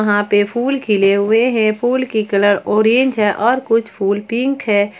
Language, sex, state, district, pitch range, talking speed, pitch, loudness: Hindi, female, Jharkhand, Ranchi, 205-240 Hz, 190 wpm, 215 Hz, -15 LUFS